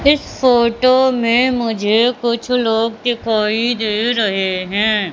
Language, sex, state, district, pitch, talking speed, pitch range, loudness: Hindi, female, Madhya Pradesh, Katni, 230 Hz, 115 wpm, 215-245 Hz, -15 LUFS